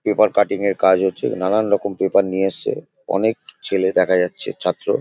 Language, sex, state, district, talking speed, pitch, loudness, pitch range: Bengali, male, West Bengal, Paschim Medinipur, 205 wpm, 95 Hz, -19 LUFS, 95-100 Hz